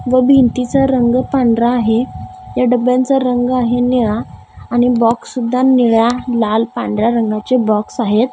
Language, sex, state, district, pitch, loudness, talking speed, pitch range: Marathi, female, Maharashtra, Gondia, 245 Hz, -14 LUFS, 135 wpm, 230-255 Hz